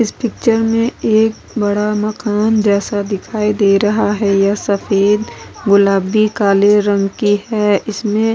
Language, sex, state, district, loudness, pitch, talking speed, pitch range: Hindi, female, Goa, North and South Goa, -14 LUFS, 210 Hz, 145 wpm, 200-215 Hz